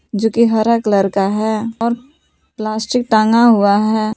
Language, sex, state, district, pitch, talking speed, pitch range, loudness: Hindi, female, Jharkhand, Palamu, 220 Hz, 160 wpm, 215-235 Hz, -15 LUFS